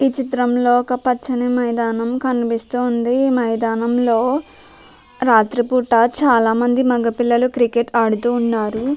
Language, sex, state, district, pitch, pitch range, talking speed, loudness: Telugu, female, Telangana, Nalgonda, 240 Hz, 230-250 Hz, 80 wpm, -17 LUFS